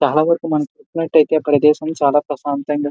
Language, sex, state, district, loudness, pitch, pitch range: Telugu, male, Andhra Pradesh, Visakhapatnam, -17 LUFS, 150 Hz, 145-160 Hz